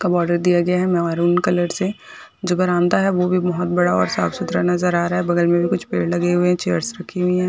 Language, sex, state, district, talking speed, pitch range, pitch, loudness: Hindi, female, Bihar, Bhagalpur, 265 wpm, 175-180 Hz, 180 Hz, -19 LUFS